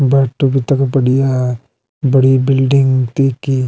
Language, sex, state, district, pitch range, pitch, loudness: Garhwali, male, Uttarakhand, Uttarkashi, 130-135 Hz, 135 Hz, -13 LUFS